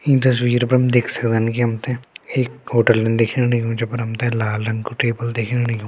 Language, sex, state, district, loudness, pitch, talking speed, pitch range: Garhwali, male, Uttarakhand, Uttarkashi, -19 LUFS, 115 Hz, 215 wpm, 115-125 Hz